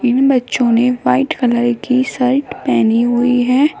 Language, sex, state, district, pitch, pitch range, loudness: Hindi, female, Uttar Pradesh, Shamli, 250 Hz, 240-260 Hz, -14 LUFS